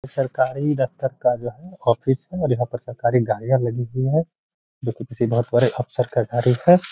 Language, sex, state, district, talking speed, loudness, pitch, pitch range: Hindi, male, Bihar, Gaya, 210 wpm, -22 LUFS, 125 Hz, 120-135 Hz